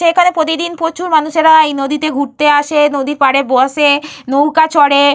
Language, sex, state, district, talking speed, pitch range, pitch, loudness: Bengali, female, Jharkhand, Jamtara, 150 wpm, 285-320 Hz, 295 Hz, -12 LUFS